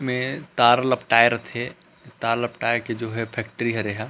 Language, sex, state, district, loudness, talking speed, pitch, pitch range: Chhattisgarhi, male, Chhattisgarh, Rajnandgaon, -22 LUFS, 175 wpm, 120 Hz, 115-125 Hz